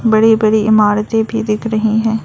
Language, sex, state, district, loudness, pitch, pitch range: Hindi, female, Arunachal Pradesh, Lower Dibang Valley, -13 LUFS, 220 Hz, 215-225 Hz